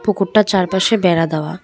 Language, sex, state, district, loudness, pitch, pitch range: Bengali, female, West Bengal, Cooch Behar, -15 LUFS, 190 Hz, 170-210 Hz